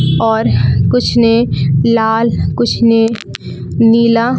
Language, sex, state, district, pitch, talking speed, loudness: Hindi, female, Jharkhand, Palamu, 185 Hz, 95 wpm, -12 LUFS